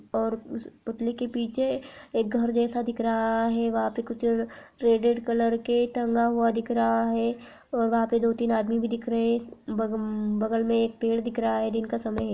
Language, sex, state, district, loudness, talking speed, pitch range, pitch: Hindi, female, Uttarakhand, Tehri Garhwal, -26 LUFS, 220 wpm, 225-235 Hz, 230 Hz